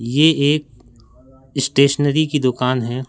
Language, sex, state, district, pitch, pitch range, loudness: Hindi, male, Madhya Pradesh, Katni, 130 Hz, 125-145 Hz, -17 LUFS